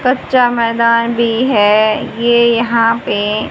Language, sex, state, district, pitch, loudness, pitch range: Hindi, female, Haryana, Jhajjar, 235 Hz, -12 LUFS, 230-240 Hz